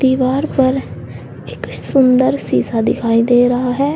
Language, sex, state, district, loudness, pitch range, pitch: Hindi, female, Uttar Pradesh, Saharanpur, -14 LUFS, 230-265 Hz, 250 Hz